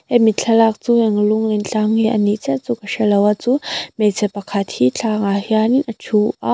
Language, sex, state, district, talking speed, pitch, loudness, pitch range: Mizo, female, Mizoram, Aizawl, 210 wpm, 215 Hz, -17 LUFS, 205-225 Hz